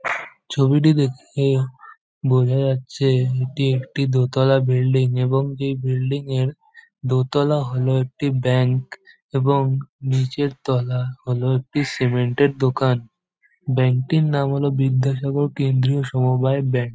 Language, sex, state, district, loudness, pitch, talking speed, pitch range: Bengali, male, West Bengal, Jhargram, -20 LUFS, 135 Hz, 120 wpm, 130-140 Hz